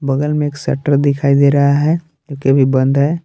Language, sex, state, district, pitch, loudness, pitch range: Hindi, male, Jharkhand, Palamu, 140 Hz, -14 LUFS, 140-150 Hz